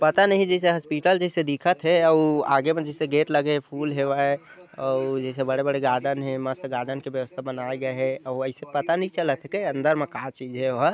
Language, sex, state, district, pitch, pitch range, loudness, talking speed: Chhattisgarhi, male, Chhattisgarh, Bilaspur, 140 Hz, 130-160 Hz, -24 LUFS, 230 wpm